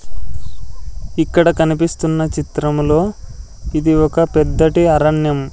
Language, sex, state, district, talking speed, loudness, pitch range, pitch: Telugu, male, Andhra Pradesh, Sri Satya Sai, 75 wpm, -15 LUFS, 150-165 Hz, 155 Hz